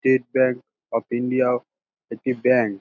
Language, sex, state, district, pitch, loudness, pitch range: Bengali, male, West Bengal, Dakshin Dinajpur, 125 Hz, -22 LUFS, 120-130 Hz